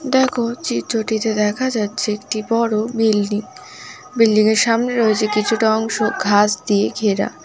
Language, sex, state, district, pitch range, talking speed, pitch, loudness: Bengali, female, West Bengal, Paschim Medinipur, 210-230 Hz, 130 wpm, 220 Hz, -18 LUFS